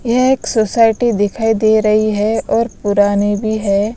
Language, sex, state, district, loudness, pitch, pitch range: Hindi, female, Bihar, West Champaran, -14 LUFS, 220 Hz, 205-225 Hz